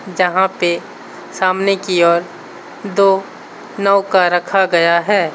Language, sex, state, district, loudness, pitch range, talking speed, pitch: Hindi, male, Bihar, Saharsa, -15 LUFS, 175-195 Hz, 110 wpm, 185 Hz